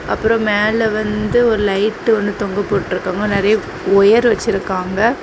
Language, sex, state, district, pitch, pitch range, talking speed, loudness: Tamil, female, Tamil Nadu, Kanyakumari, 210 Hz, 200-225 Hz, 125 wpm, -16 LUFS